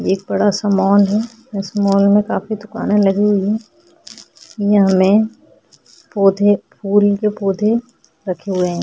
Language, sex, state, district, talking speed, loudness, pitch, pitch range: Hindi, female, Maharashtra, Chandrapur, 155 wpm, -16 LUFS, 205 Hz, 195-210 Hz